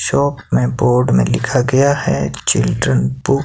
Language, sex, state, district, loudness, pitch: Hindi, male, Himachal Pradesh, Shimla, -15 LUFS, 125 Hz